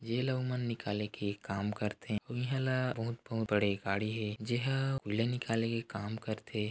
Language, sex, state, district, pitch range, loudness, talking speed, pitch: Chhattisgarhi, male, Chhattisgarh, Korba, 105-125 Hz, -35 LUFS, 170 wpm, 115 Hz